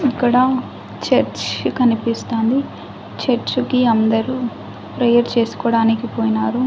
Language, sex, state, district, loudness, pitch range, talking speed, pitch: Telugu, female, Andhra Pradesh, Annamaya, -18 LUFS, 230-255 Hz, 70 wpm, 240 Hz